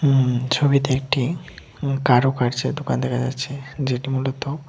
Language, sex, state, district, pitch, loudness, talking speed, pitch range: Bengali, male, Tripura, West Tripura, 135 Hz, -21 LUFS, 115 wpm, 125-140 Hz